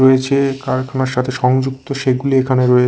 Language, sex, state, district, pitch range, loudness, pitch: Bengali, male, Odisha, Khordha, 130-135 Hz, -16 LUFS, 130 Hz